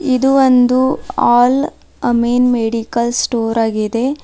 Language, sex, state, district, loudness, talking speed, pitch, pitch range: Kannada, female, Karnataka, Bidar, -14 LUFS, 100 wpm, 245 Hz, 230-260 Hz